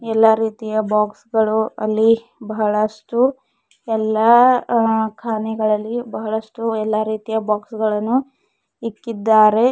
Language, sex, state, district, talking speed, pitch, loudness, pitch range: Kannada, female, Karnataka, Bidar, 90 wpm, 220 Hz, -18 LUFS, 215-230 Hz